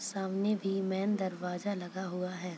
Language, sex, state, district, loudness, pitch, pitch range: Hindi, female, Bihar, Purnia, -34 LUFS, 190 Hz, 180-195 Hz